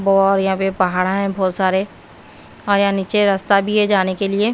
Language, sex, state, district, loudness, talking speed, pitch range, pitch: Hindi, female, Bihar, Katihar, -17 LUFS, 210 wpm, 190-200 Hz, 195 Hz